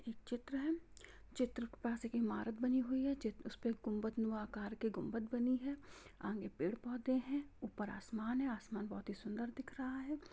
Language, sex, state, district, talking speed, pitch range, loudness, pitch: Hindi, female, Jharkhand, Jamtara, 205 wpm, 220-260 Hz, -42 LUFS, 235 Hz